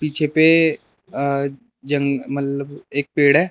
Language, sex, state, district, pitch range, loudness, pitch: Hindi, male, Arunachal Pradesh, Lower Dibang Valley, 140-155 Hz, -18 LUFS, 145 Hz